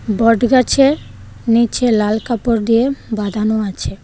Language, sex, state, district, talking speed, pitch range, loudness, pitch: Bengali, female, Tripura, West Tripura, 120 wpm, 215-240 Hz, -15 LUFS, 230 Hz